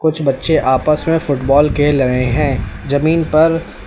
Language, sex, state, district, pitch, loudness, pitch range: Hindi, male, Uttar Pradesh, Lalitpur, 145 Hz, -14 LUFS, 135-160 Hz